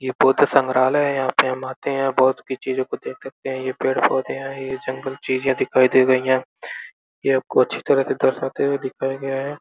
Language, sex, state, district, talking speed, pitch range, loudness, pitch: Hindi, male, Uttar Pradesh, Gorakhpur, 225 wpm, 130-135 Hz, -20 LUFS, 130 Hz